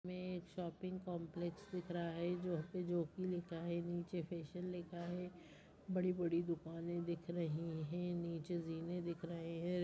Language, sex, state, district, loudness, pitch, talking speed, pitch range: Hindi, female, Bihar, Vaishali, -44 LUFS, 175 Hz, 160 wpm, 170-180 Hz